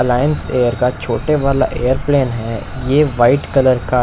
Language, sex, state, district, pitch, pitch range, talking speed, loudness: Hindi, male, Chandigarh, Chandigarh, 130 Hz, 120-140 Hz, 165 wpm, -15 LUFS